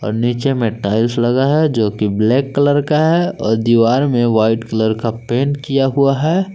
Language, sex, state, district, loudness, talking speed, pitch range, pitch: Hindi, male, Jharkhand, Palamu, -15 LUFS, 200 wpm, 110-140 Hz, 120 Hz